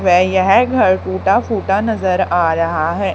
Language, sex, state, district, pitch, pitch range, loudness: Hindi, female, Haryana, Charkhi Dadri, 185 Hz, 165-195 Hz, -15 LUFS